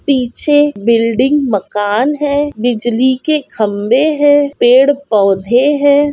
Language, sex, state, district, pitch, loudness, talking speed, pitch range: Hindi, female, Andhra Pradesh, Visakhapatnam, 260 Hz, -12 LUFS, 110 wpm, 230-290 Hz